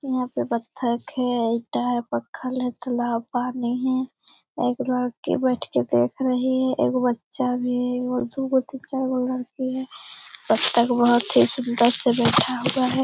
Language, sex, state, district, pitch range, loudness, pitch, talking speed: Hindi, female, Bihar, Lakhisarai, 240-255 Hz, -23 LUFS, 250 Hz, 165 wpm